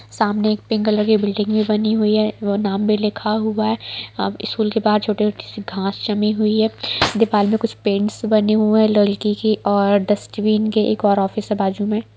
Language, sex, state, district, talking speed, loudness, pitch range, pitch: Hindi, female, Bihar, Sitamarhi, 210 wpm, -18 LUFS, 205-215 Hz, 215 Hz